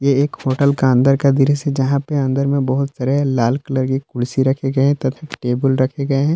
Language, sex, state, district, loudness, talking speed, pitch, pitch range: Hindi, male, Jharkhand, Palamu, -17 LUFS, 215 wpm, 135 Hz, 130-140 Hz